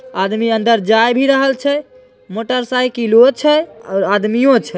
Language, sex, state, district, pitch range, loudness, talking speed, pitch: Maithili, female, Bihar, Begusarai, 225-275 Hz, -14 LUFS, 125 wpm, 245 Hz